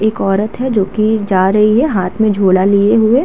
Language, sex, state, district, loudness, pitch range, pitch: Hindi, female, Uttar Pradesh, Hamirpur, -12 LUFS, 195-220 Hz, 210 Hz